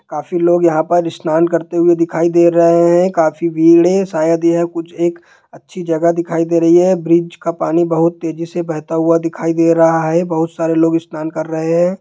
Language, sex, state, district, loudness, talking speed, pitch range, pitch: Hindi, male, Bihar, Jahanabad, -14 LUFS, 215 wpm, 165-170 Hz, 170 Hz